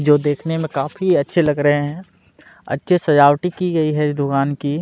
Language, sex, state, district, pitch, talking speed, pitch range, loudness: Hindi, male, Chhattisgarh, Kabirdham, 150 Hz, 185 wpm, 145-165 Hz, -18 LUFS